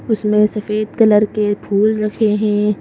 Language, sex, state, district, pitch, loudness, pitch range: Hindi, female, Madhya Pradesh, Bhopal, 210 Hz, -16 LUFS, 210-215 Hz